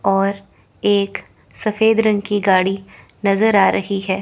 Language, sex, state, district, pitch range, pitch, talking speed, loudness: Hindi, female, Chandigarh, Chandigarh, 195-210 Hz, 200 Hz, 140 wpm, -17 LUFS